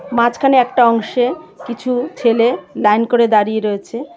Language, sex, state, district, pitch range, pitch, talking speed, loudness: Bengali, female, Tripura, West Tripura, 220-245 Hz, 235 Hz, 145 wpm, -15 LUFS